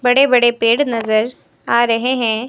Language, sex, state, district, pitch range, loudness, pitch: Hindi, female, Himachal Pradesh, Shimla, 230-250 Hz, -15 LUFS, 240 Hz